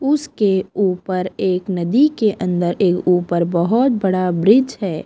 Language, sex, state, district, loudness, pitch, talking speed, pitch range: Hindi, female, Punjab, Pathankot, -17 LUFS, 190 Hz, 140 wpm, 180-225 Hz